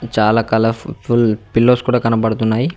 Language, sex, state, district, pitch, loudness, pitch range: Telugu, male, Telangana, Mahabubabad, 115 Hz, -15 LUFS, 110-120 Hz